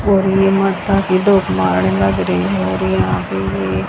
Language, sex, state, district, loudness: Hindi, female, Haryana, Jhajjar, -15 LUFS